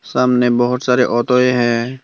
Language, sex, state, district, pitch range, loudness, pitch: Hindi, male, Tripura, Dhalai, 120-125 Hz, -15 LUFS, 125 Hz